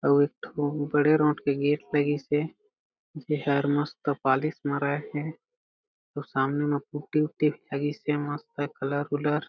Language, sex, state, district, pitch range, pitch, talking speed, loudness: Chhattisgarhi, male, Chhattisgarh, Jashpur, 145-150 Hz, 145 Hz, 160 wpm, -27 LUFS